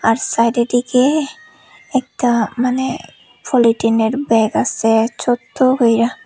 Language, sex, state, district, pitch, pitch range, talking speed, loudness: Bengali, female, Tripura, Unakoti, 245 Hz, 230-260 Hz, 85 wpm, -16 LUFS